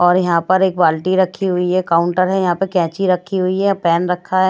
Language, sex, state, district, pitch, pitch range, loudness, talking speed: Hindi, female, Maharashtra, Washim, 185 Hz, 175-190 Hz, -16 LUFS, 255 wpm